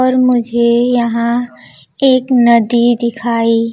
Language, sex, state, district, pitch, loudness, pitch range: Hindi, female, Bihar, Kaimur, 235 Hz, -12 LUFS, 230-245 Hz